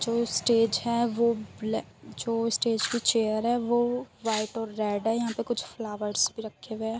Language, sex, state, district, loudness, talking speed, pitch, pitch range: Hindi, female, Uttar Pradesh, Muzaffarnagar, -28 LUFS, 195 wpm, 230 Hz, 220-235 Hz